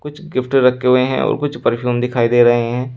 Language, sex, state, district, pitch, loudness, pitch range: Hindi, male, Uttar Pradesh, Shamli, 125 Hz, -16 LUFS, 120-130 Hz